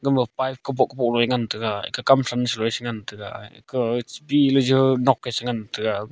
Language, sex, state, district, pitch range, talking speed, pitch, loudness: Wancho, male, Arunachal Pradesh, Longding, 115-135 Hz, 195 wpm, 125 Hz, -22 LUFS